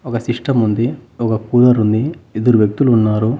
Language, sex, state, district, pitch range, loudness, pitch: Telugu, male, Andhra Pradesh, Annamaya, 110-125 Hz, -15 LUFS, 115 Hz